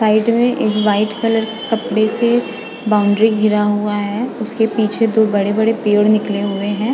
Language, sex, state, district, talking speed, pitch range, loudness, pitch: Hindi, female, Goa, North and South Goa, 180 wpm, 210-225 Hz, -16 LUFS, 215 Hz